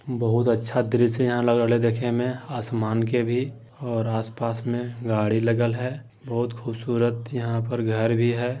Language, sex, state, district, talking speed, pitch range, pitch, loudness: Hindi, male, Bihar, Madhepura, 165 wpm, 115-120 Hz, 120 Hz, -24 LUFS